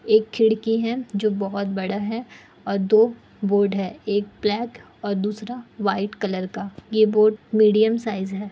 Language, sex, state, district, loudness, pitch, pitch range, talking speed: Hindi, female, Bihar, Kishanganj, -22 LUFS, 210 Hz, 200-220 Hz, 160 wpm